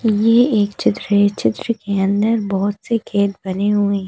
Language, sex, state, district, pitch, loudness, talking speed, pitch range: Hindi, female, Madhya Pradesh, Bhopal, 205 Hz, -17 LUFS, 190 wpm, 200-225 Hz